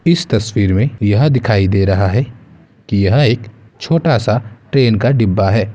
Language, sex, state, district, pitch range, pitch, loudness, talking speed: Hindi, male, Uttar Pradesh, Gorakhpur, 105-130 Hz, 110 Hz, -14 LUFS, 175 wpm